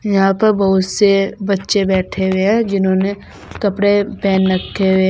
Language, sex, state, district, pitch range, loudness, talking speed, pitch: Hindi, female, Uttar Pradesh, Saharanpur, 190-205 Hz, -15 LUFS, 165 wpm, 195 Hz